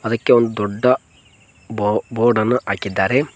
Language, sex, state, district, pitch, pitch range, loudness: Kannada, male, Karnataka, Koppal, 110 Hz, 100-120 Hz, -18 LUFS